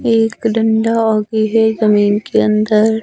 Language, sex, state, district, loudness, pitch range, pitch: Hindi, female, Himachal Pradesh, Shimla, -14 LUFS, 215-225 Hz, 220 Hz